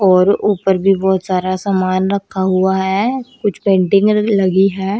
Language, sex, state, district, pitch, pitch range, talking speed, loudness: Hindi, female, Haryana, Rohtak, 190 Hz, 190-200 Hz, 155 wpm, -15 LUFS